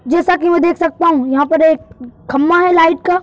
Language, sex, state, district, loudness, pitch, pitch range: Hindi, male, Madhya Pradesh, Bhopal, -13 LUFS, 330 Hz, 300-345 Hz